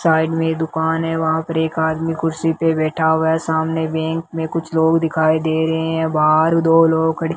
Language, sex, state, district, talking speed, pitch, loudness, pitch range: Hindi, male, Rajasthan, Bikaner, 210 wpm, 160 Hz, -17 LUFS, 160-165 Hz